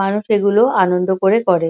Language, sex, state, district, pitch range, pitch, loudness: Bengali, female, West Bengal, Kolkata, 185-205 Hz, 195 Hz, -15 LUFS